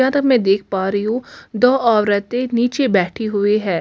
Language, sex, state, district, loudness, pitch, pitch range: Hindi, female, Delhi, New Delhi, -17 LUFS, 220 Hz, 200-250 Hz